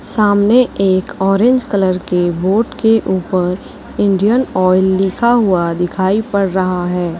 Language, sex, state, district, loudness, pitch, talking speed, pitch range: Hindi, female, Chhattisgarh, Raipur, -14 LUFS, 190 Hz, 135 wpm, 185-210 Hz